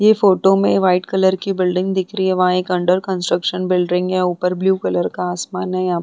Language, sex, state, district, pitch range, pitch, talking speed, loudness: Hindi, female, Bihar, Vaishali, 180-190 Hz, 185 Hz, 250 wpm, -17 LUFS